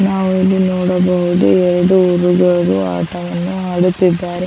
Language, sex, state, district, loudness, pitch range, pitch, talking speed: Kannada, female, Karnataka, Chamarajanagar, -14 LUFS, 175-185 Hz, 180 Hz, 105 wpm